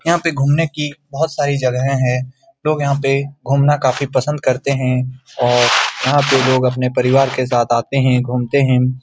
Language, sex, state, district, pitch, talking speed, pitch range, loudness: Hindi, male, Bihar, Saran, 135 Hz, 190 wpm, 125-140 Hz, -16 LUFS